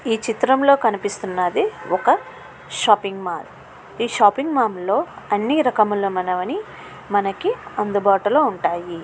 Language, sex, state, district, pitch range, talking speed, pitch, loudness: Telugu, female, Andhra Pradesh, Krishna, 195-260 Hz, 85 wpm, 205 Hz, -20 LUFS